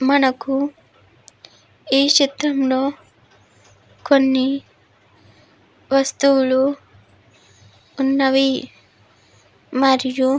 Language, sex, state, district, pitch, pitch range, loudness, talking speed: Telugu, female, Andhra Pradesh, Visakhapatnam, 270 Hz, 260-275 Hz, -18 LUFS, 45 wpm